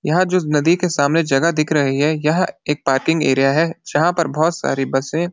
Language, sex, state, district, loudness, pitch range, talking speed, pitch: Hindi, male, Uttarakhand, Uttarkashi, -17 LUFS, 140-170 Hz, 225 wpm, 155 Hz